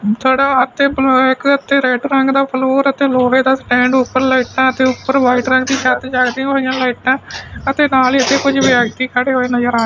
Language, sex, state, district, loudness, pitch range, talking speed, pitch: Punjabi, male, Punjab, Fazilka, -13 LUFS, 255-270 Hz, 180 wpm, 260 Hz